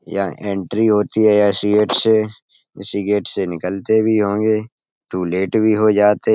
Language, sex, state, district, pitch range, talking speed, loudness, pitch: Hindi, male, Uttar Pradesh, Etah, 100-110 Hz, 180 wpm, -17 LUFS, 105 Hz